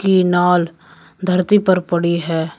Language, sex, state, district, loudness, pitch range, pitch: Hindi, male, Uttar Pradesh, Shamli, -16 LUFS, 170-185 Hz, 180 Hz